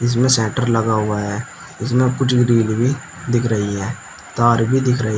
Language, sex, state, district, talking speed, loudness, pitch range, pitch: Hindi, male, Uttar Pradesh, Shamli, 195 wpm, -18 LUFS, 110-125 Hz, 120 Hz